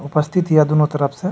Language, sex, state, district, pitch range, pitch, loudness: Maithili, male, Bihar, Supaul, 145-160 Hz, 150 Hz, -17 LUFS